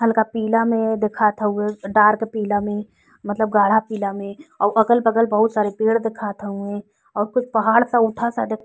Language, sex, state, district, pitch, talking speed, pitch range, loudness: Bhojpuri, female, Uttar Pradesh, Ghazipur, 220 Hz, 185 wpm, 205-225 Hz, -19 LUFS